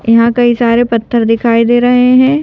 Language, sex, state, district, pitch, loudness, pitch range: Hindi, female, Madhya Pradesh, Bhopal, 240 Hz, -10 LUFS, 230-245 Hz